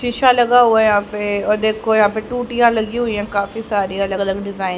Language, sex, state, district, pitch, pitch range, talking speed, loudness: Hindi, female, Haryana, Jhajjar, 215 Hz, 200-235 Hz, 250 wpm, -16 LUFS